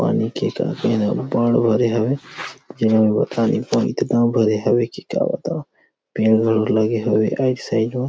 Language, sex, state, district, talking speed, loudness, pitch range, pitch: Chhattisgarhi, male, Chhattisgarh, Rajnandgaon, 180 wpm, -19 LUFS, 110-120 Hz, 110 Hz